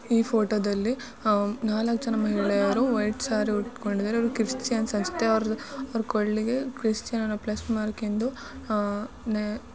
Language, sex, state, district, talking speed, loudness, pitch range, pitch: Kannada, female, Karnataka, Shimoga, 90 wpm, -27 LUFS, 210-235 Hz, 220 Hz